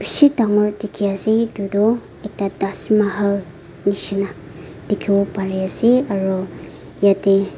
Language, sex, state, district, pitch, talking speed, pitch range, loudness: Nagamese, female, Nagaland, Dimapur, 200 Hz, 105 wpm, 195-210 Hz, -19 LUFS